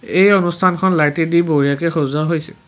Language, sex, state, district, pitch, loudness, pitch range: Assamese, male, Assam, Kamrup Metropolitan, 165 Hz, -15 LUFS, 150-185 Hz